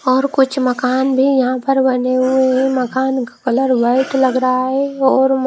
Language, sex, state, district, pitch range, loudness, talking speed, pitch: Hindi, female, Himachal Pradesh, Shimla, 255-265 Hz, -15 LUFS, 195 wpm, 260 Hz